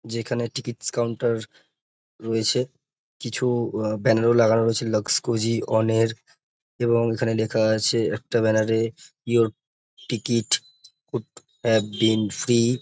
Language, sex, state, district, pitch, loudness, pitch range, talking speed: Bengali, male, West Bengal, North 24 Parganas, 115 Hz, -23 LUFS, 110-120 Hz, 115 wpm